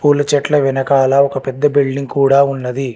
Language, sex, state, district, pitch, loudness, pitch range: Telugu, male, Telangana, Hyderabad, 140 Hz, -14 LUFS, 135-145 Hz